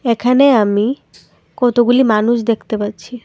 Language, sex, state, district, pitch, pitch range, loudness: Bengali, female, Tripura, Dhalai, 235 Hz, 220-250 Hz, -14 LUFS